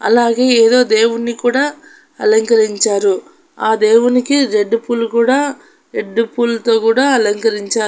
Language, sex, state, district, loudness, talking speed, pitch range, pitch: Telugu, female, Andhra Pradesh, Annamaya, -14 LUFS, 105 wpm, 225-265 Hz, 235 Hz